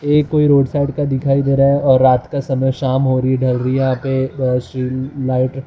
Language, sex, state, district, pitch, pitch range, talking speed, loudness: Hindi, male, Maharashtra, Mumbai Suburban, 135 Hz, 130-140 Hz, 265 wpm, -16 LUFS